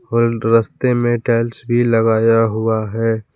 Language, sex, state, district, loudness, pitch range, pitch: Hindi, male, Jharkhand, Palamu, -16 LUFS, 115-120 Hz, 115 Hz